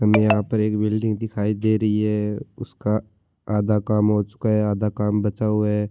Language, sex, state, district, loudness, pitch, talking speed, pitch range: Marwari, male, Rajasthan, Churu, -22 LUFS, 105 Hz, 205 wpm, 105-110 Hz